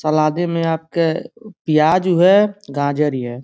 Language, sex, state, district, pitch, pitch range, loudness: Bhojpuri, male, Uttar Pradesh, Gorakhpur, 160 Hz, 155-180 Hz, -17 LUFS